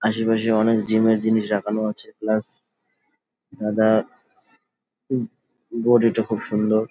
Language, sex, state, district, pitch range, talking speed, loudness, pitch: Bengali, male, West Bengal, Dakshin Dinajpur, 110-115 Hz, 120 wpm, -21 LUFS, 110 Hz